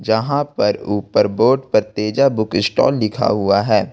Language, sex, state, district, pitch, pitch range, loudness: Hindi, male, Jharkhand, Ranchi, 110 Hz, 105-135 Hz, -17 LUFS